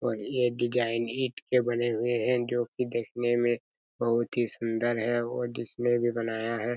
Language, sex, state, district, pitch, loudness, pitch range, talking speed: Hindi, male, Chhattisgarh, Raigarh, 120 Hz, -29 LUFS, 115-120 Hz, 185 wpm